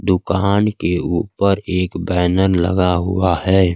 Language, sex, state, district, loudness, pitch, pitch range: Hindi, male, Bihar, Kaimur, -17 LUFS, 95 Hz, 90-95 Hz